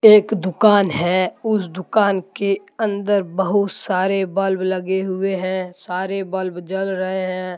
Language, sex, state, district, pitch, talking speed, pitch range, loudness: Hindi, male, Jharkhand, Deoghar, 190 Hz, 140 wpm, 185-200 Hz, -19 LUFS